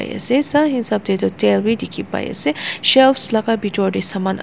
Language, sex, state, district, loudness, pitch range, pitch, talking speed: Nagamese, female, Nagaland, Dimapur, -16 LUFS, 195-260 Hz, 225 Hz, 205 wpm